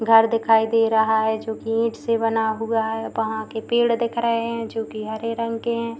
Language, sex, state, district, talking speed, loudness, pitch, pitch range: Hindi, female, Bihar, Madhepura, 240 wpm, -22 LUFS, 225 Hz, 220-230 Hz